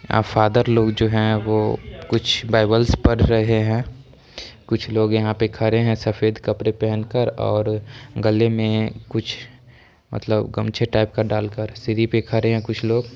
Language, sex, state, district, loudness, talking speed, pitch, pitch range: Hindi, male, Bihar, Darbhanga, -20 LUFS, 160 wpm, 110 Hz, 110-115 Hz